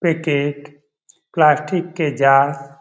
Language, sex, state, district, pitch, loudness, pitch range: Hindi, male, Bihar, Jamui, 145 Hz, -17 LUFS, 140-160 Hz